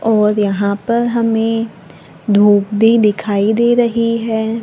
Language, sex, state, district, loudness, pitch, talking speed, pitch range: Hindi, female, Maharashtra, Gondia, -14 LUFS, 220 Hz, 130 wpm, 205-230 Hz